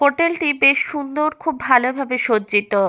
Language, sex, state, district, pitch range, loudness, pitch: Bengali, female, West Bengal, Paschim Medinipur, 245-305 Hz, -18 LUFS, 275 Hz